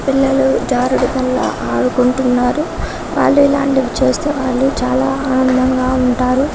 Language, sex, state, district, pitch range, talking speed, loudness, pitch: Telugu, female, Telangana, Karimnagar, 255-270 Hz, 100 wpm, -15 LUFS, 260 Hz